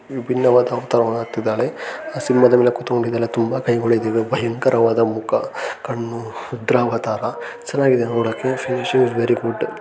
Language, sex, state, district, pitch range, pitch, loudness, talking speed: Kannada, male, Karnataka, Gulbarga, 115-125 Hz, 120 Hz, -19 LUFS, 120 wpm